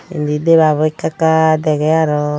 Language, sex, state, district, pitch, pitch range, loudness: Chakma, female, Tripura, Dhalai, 155 Hz, 150-160 Hz, -14 LUFS